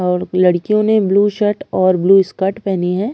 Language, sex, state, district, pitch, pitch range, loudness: Hindi, female, Chhattisgarh, Kabirdham, 195 Hz, 185-210 Hz, -15 LUFS